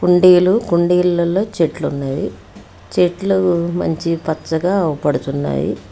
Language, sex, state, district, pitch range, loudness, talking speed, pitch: Telugu, female, Telangana, Hyderabad, 145-180 Hz, -17 LUFS, 70 wpm, 170 Hz